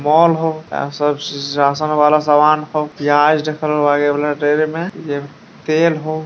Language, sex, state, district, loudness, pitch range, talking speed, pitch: Hindi, male, Bihar, Jamui, -16 LUFS, 145-155 Hz, 155 wpm, 150 Hz